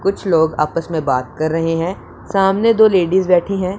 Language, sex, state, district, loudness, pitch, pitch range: Hindi, male, Punjab, Pathankot, -16 LUFS, 175 Hz, 160-195 Hz